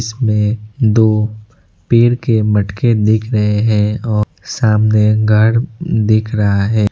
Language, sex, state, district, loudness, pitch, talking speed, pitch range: Hindi, male, West Bengal, Darjeeling, -14 LUFS, 110 Hz, 120 wpm, 105-115 Hz